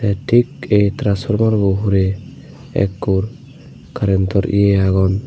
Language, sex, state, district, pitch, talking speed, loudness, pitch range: Chakma, male, Tripura, Unakoti, 100 Hz, 100 wpm, -16 LUFS, 95-110 Hz